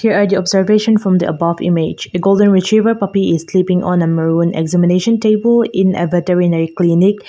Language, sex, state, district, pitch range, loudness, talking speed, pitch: English, female, Mizoram, Aizawl, 175-205 Hz, -13 LUFS, 180 wpm, 185 Hz